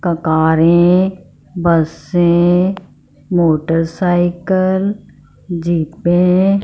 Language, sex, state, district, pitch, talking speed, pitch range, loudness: Hindi, female, Punjab, Fazilka, 175 Hz, 45 wpm, 165-185 Hz, -14 LUFS